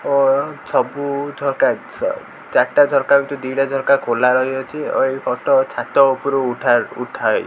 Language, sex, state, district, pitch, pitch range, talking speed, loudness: Odia, male, Odisha, Khordha, 140 Hz, 130-140 Hz, 160 wpm, -17 LUFS